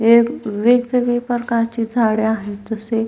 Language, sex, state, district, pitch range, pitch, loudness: Marathi, female, Maharashtra, Solapur, 220-240 Hz, 230 Hz, -18 LUFS